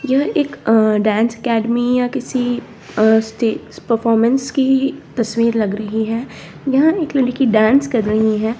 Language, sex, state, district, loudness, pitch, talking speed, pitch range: Hindi, female, Bihar, Lakhisarai, -16 LUFS, 235 Hz, 155 wpm, 220-265 Hz